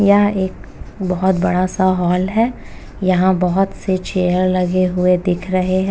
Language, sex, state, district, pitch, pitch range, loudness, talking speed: Hindi, female, Uttar Pradesh, Jalaun, 185 Hz, 180-190 Hz, -17 LUFS, 160 wpm